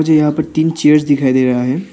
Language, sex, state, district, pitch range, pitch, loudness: Hindi, male, Arunachal Pradesh, Papum Pare, 130-155 Hz, 150 Hz, -13 LUFS